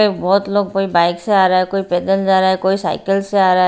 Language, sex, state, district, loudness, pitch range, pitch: Hindi, female, Bihar, Patna, -15 LUFS, 185-195 Hz, 195 Hz